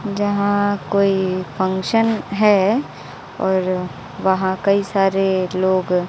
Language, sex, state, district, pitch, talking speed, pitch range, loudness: Hindi, female, Bihar, West Champaran, 190 Hz, 90 wpm, 185-200 Hz, -18 LUFS